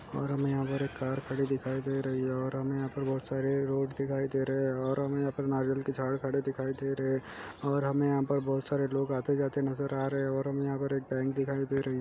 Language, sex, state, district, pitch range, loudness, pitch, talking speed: Hindi, male, Chhattisgarh, Jashpur, 135-140 Hz, -32 LUFS, 135 Hz, 290 wpm